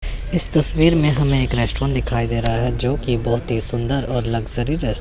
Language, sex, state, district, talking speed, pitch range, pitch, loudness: Hindi, male, Chandigarh, Chandigarh, 205 wpm, 115-140 Hz, 125 Hz, -19 LUFS